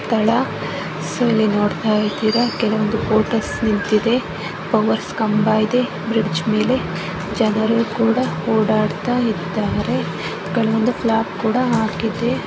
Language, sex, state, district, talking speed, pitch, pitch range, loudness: Kannada, female, Karnataka, Bijapur, 80 wpm, 220 Hz, 205-225 Hz, -19 LUFS